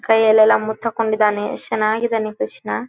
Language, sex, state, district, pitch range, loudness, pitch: Kannada, female, Karnataka, Dharwad, 215-225 Hz, -18 LUFS, 220 Hz